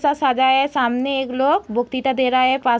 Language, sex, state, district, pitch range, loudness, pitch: Hindi, female, Bihar, East Champaran, 255-270 Hz, -18 LUFS, 260 Hz